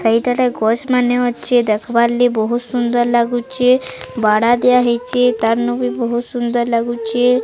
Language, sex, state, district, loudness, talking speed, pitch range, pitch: Odia, female, Odisha, Sambalpur, -16 LUFS, 130 wpm, 235-245 Hz, 240 Hz